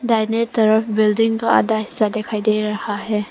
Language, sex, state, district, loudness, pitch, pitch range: Hindi, female, Arunachal Pradesh, Papum Pare, -18 LUFS, 220 Hz, 215-225 Hz